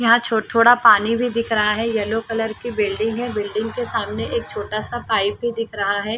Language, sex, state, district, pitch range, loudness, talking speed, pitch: Hindi, female, Chhattisgarh, Bilaspur, 210-230 Hz, -19 LUFS, 225 wpm, 225 Hz